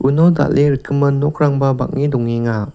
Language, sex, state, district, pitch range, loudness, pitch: Garo, male, Meghalaya, West Garo Hills, 130-145 Hz, -16 LUFS, 140 Hz